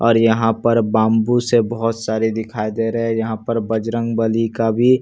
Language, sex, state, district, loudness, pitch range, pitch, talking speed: Hindi, male, Bihar, Katihar, -18 LUFS, 110-115 Hz, 115 Hz, 215 wpm